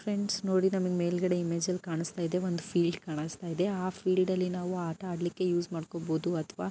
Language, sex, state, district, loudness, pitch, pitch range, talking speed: Kannada, female, Karnataka, Dharwad, -31 LUFS, 175 Hz, 170-185 Hz, 190 wpm